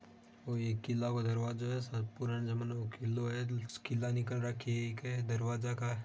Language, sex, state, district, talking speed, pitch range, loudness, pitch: Marwari, male, Rajasthan, Nagaur, 180 wpm, 115-120 Hz, -38 LUFS, 120 Hz